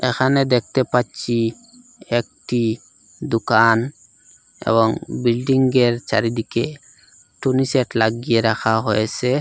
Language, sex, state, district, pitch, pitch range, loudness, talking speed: Bengali, male, Assam, Hailakandi, 120 Hz, 110-130 Hz, -19 LUFS, 85 wpm